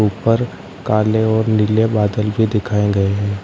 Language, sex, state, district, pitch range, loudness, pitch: Hindi, male, Uttar Pradesh, Lalitpur, 100-110 Hz, -17 LUFS, 105 Hz